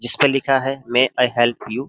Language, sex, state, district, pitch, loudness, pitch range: Hindi, male, Uttar Pradesh, Jyotiba Phule Nagar, 125 Hz, -18 LUFS, 120-135 Hz